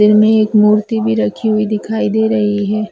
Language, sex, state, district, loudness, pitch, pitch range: Hindi, female, Bihar, Madhepura, -13 LUFS, 215 Hz, 210-220 Hz